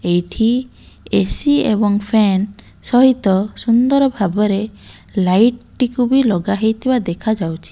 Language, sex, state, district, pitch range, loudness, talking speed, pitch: Odia, female, Odisha, Malkangiri, 195-250 Hz, -16 LUFS, 110 wpm, 220 Hz